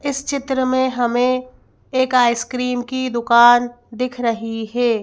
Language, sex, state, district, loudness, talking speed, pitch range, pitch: Hindi, female, Madhya Pradesh, Bhopal, -18 LUFS, 130 wpm, 235-255 Hz, 245 Hz